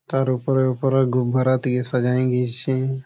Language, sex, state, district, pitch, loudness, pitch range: Bengali, male, West Bengal, Malda, 130 Hz, -21 LUFS, 125-130 Hz